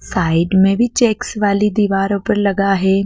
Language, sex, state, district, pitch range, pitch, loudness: Hindi, female, Madhya Pradesh, Dhar, 195-215 Hz, 200 Hz, -15 LUFS